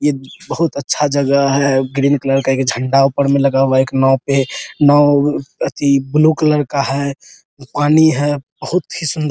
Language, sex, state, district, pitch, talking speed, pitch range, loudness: Hindi, male, Bihar, Araria, 140 Hz, 200 wpm, 135-145 Hz, -15 LUFS